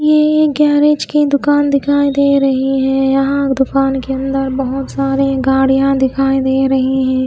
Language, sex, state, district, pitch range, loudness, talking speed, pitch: Hindi, female, Haryana, Rohtak, 265-280 Hz, -13 LUFS, 165 wpm, 270 Hz